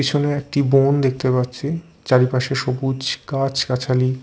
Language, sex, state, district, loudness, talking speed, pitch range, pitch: Bengali, male, Odisha, Khordha, -20 LUFS, 115 wpm, 130-140 Hz, 135 Hz